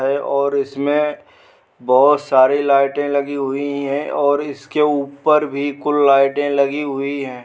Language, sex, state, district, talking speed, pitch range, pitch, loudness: Hindi, male, Uttar Pradesh, Muzaffarnagar, 145 wpm, 140-145 Hz, 140 Hz, -17 LUFS